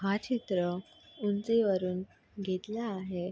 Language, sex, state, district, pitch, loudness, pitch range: Marathi, female, Maharashtra, Sindhudurg, 195 Hz, -33 LUFS, 185-215 Hz